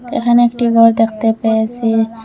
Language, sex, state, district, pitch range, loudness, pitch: Bengali, female, Assam, Hailakandi, 225-235 Hz, -13 LUFS, 225 Hz